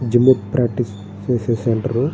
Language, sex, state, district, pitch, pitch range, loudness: Telugu, male, Andhra Pradesh, Srikakulam, 120 Hz, 110-125 Hz, -18 LUFS